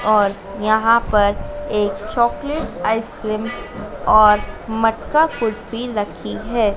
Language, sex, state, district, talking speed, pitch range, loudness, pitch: Hindi, female, Madhya Pradesh, Dhar, 95 wpm, 210-230 Hz, -18 LUFS, 215 Hz